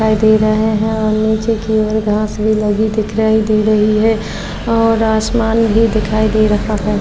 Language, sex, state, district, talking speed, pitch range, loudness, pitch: Hindi, female, Uttar Pradesh, Jyotiba Phule Nagar, 190 wpm, 215-220 Hz, -14 LUFS, 215 Hz